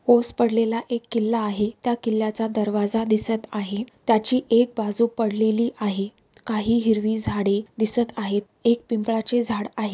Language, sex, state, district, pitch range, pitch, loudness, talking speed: Marathi, female, Maharashtra, Solapur, 215-235 Hz, 225 Hz, -23 LUFS, 155 wpm